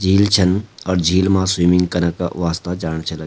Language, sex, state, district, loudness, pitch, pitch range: Garhwali, male, Uttarakhand, Uttarkashi, -17 LUFS, 90 Hz, 85-95 Hz